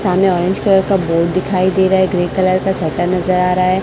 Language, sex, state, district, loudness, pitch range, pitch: Hindi, female, Chhattisgarh, Raipur, -14 LUFS, 180-190 Hz, 185 Hz